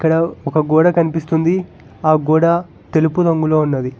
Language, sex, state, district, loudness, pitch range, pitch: Telugu, male, Telangana, Hyderabad, -16 LUFS, 155-170 Hz, 160 Hz